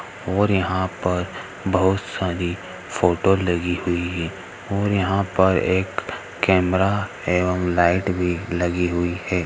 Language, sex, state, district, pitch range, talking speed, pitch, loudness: Hindi, male, Chhattisgarh, Raigarh, 90-95 Hz, 135 wpm, 95 Hz, -21 LUFS